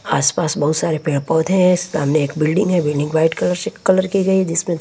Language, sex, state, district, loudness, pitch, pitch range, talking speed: Hindi, female, Odisha, Nuapada, -17 LUFS, 165 Hz, 155-185 Hz, 210 wpm